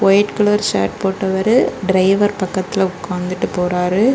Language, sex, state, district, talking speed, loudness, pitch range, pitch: Tamil, female, Tamil Nadu, Kanyakumari, 115 wpm, -17 LUFS, 180-205 Hz, 190 Hz